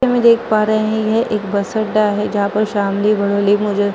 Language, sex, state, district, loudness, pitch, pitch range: Hindi, female, Uttar Pradesh, Muzaffarnagar, -16 LUFS, 210 Hz, 205-215 Hz